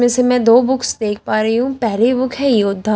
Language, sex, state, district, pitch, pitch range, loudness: Hindi, female, Delhi, New Delhi, 240 Hz, 215-255 Hz, -15 LUFS